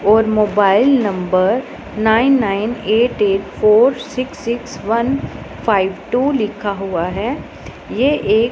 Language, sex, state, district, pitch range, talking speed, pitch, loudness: Hindi, female, Punjab, Pathankot, 200-245 Hz, 125 wpm, 220 Hz, -16 LUFS